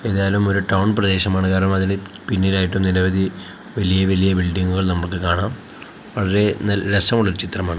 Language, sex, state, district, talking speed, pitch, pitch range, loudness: Malayalam, male, Kerala, Kozhikode, 130 wpm, 95 Hz, 95-100 Hz, -18 LUFS